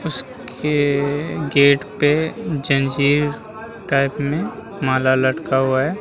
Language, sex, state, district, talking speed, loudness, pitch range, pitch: Hindi, male, Bihar, Vaishali, 110 wpm, -19 LUFS, 135-155 Hz, 145 Hz